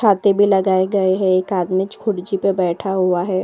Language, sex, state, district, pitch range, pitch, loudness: Hindi, female, Uttar Pradesh, Jyotiba Phule Nagar, 185-200 Hz, 190 Hz, -17 LUFS